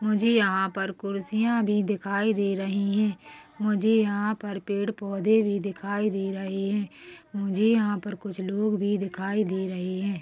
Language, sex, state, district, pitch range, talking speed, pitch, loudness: Hindi, female, Chhattisgarh, Rajnandgaon, 195-215 Hz, 165 wpm, 205 Hz, -26 LUFS